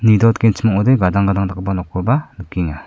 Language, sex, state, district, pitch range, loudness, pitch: Garo, male, Meghalaya, South Garo Hills, 90-115 Hz, -16 LUFS, 100 Hz